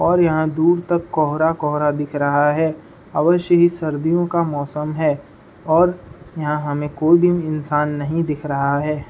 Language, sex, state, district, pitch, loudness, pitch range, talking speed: Hindi, male, Uttar Pradesh, Budaun, 155 Hz, -19 LUFS, 150-170 Hz, 165 wpm